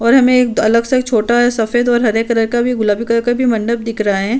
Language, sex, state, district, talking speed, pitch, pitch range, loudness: Hindi, female, Uttar Pradesh, Budaun, 260 wpm, 235 Hz, 225-245 Hz, -14 LUFS